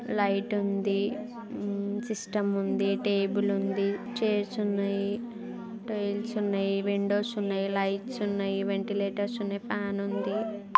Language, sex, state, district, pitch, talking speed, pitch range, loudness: Telugu, female, Andhra Pradesh, Guntur, 205 Hz, 105 wpm, 200-215 Hz, -30 LUFS